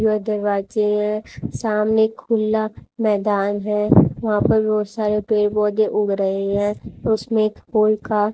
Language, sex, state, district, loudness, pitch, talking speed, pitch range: Hindi, female, Haryana, Rohtak, -20 LUFS, 210 Hz, 135 wpm, 210-215 Hz